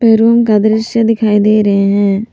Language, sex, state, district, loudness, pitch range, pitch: Hindi, female, Jharkhand, Palamu, -11 LUFS, 205-225 Hz, 215 Hz